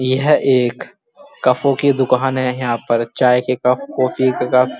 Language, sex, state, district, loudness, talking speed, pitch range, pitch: Hindi, male, Uttar Pradesh, Muzaffarnagar, -16 LUFS, 200 wpm, 125-135 Hz, 130 Hz